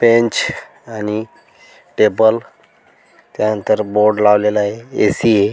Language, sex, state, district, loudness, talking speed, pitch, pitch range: Marathi, male, Maharashtra, Dhule, -15 LUFS, 95 wpm, 105 Hz, 105-110 Hz